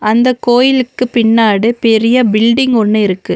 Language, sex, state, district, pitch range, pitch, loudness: Tamil, female, Tamil Nadu, Nilgiris, 220-250 Hz, 230 Hz, -11 LUFS